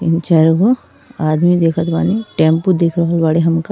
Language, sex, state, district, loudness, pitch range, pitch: Bhojpuri, female, Uttar Pradesh, Ghazipur, -14 LUFS, 165-180 Hz, 165 Hz